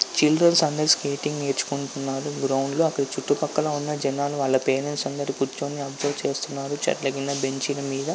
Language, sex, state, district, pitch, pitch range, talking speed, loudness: Telugu, male, Andhra Pradesh, Visakhapatnam, 140 Hz, 135-150 Hz, 155 wpm, -24 LUFS